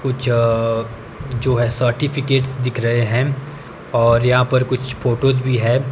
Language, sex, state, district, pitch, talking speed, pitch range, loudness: Hindi, male, Himachal Pradesh, Shimla, 125 Hz, 140 wpm, 115-130 Hz, -18 LUFS